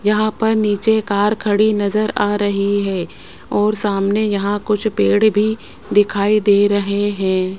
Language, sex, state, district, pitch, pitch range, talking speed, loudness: Hindi, male, Rajasthan, Jaipur, 205 Hz, 200-215 Hz, 150 wpm, -16 LUFS